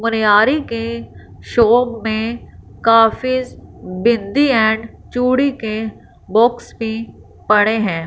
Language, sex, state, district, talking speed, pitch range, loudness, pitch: Hindi, female, Punjab, Fazilka, 95 wpm, 220-240 Hz, -16 LUFS, 230 Hz